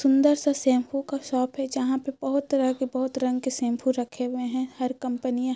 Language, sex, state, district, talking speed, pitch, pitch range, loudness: Magahi, female, Bihar, Gaya, 235 wpm, 260 Hz, 255-275 Hz, -26 LUFS